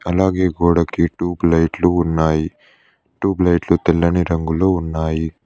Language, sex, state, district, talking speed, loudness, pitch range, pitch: Telugu, male, Telangana, Mahabubabad, 110 wpm, -17 LUFS, 80-90 Hz, 85 Hz